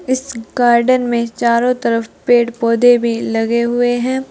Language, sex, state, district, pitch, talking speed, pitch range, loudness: Hindi, female, Uttar Pradesh, Saharanpur, 240 Hz, 155 wpm, 235-245 Hz, -15 LUFS